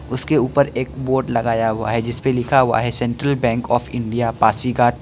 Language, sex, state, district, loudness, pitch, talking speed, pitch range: Hindi, male, Arunachal Pradesh, Lower Dibang Valley, -19 LUFS, 120 Hz, 205 wpm, 115-130 Hz